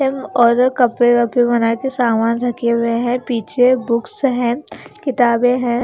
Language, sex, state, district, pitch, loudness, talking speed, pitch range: Hindi, female, Haryana, Charkhi Dadri, 245 Hz, -16 LUFS, 155 wpm, 235-255 Hz